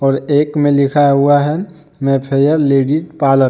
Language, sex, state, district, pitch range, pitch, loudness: Hindi, male, Jharkhand, Deoghar, 135-150 Hz, 145 Hz, -13 LUFS